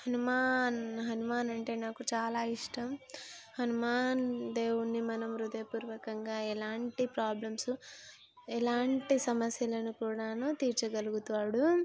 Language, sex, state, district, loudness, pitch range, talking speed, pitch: Telugu, female, Telangana, Karimnagar, -35 LUFS, 225-250 Hz, 90 wpm, 230 Hz